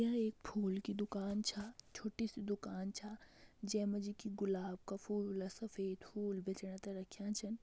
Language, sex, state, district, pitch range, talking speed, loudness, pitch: Garhwali, female, Uttarakhand, Tehri Garhwal, 195-215 Hz, 180 wpm, -43 LUFS, 205 Hz